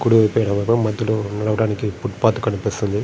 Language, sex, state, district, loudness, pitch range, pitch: Telugu, male, Andhra Pradesh, Srikakulam, -20 LUFS, 105-115 Hz, 110 Hz